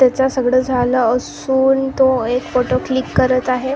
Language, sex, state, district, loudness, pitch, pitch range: Marathi, female, Maharashtra, Gondia, -16 LUFS, 255 Hz, 250-265 Hz